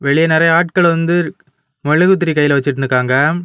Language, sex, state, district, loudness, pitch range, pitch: Tamil, male, Tamil Nadu, Kanyakumari, -13 LUFS, 140-170 Hz, 155 Hz